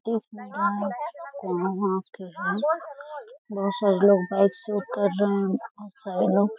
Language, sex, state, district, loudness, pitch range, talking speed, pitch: Hindi, female, Bihar, Lakhisarai, -25 LUFS, 190-215 Hz, 155 wpm, 200 Hz